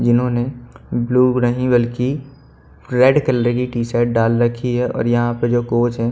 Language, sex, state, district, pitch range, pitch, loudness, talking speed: Hindi, male, Haryana, Charkhi Dadri, 120-125 Hz, 120 Hz, -17 LUFS, 175 wpm